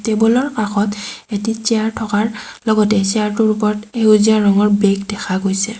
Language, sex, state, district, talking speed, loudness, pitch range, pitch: Assamese, female, Assam, Sonitpur, 155 wpm, -16 LUFS, 205-220 Hz, 215 Hz